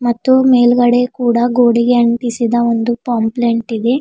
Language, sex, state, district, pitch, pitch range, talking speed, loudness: Kannada, female, Karnataka, Bidar, 240 Hz, 235-245 Hz, 120 wpm, -13 LUFS